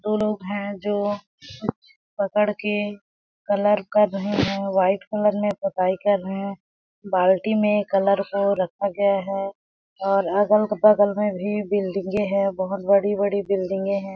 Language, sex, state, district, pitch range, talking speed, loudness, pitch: Hindi, female, Chhattisgarh, Balrampur, 195-205 Hz, 150 wpm, -22 LUFS, 200 Hz